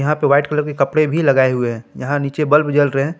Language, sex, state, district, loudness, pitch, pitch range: Hindi, male, Jharkhand, Palamu, -16 LUFS, 145 Hz, 140-150 Hz